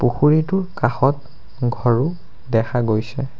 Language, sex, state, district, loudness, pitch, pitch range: Assamese, male, Assam, Sonitpur, -19 LUFS, 125 Hz, 115-145 Hz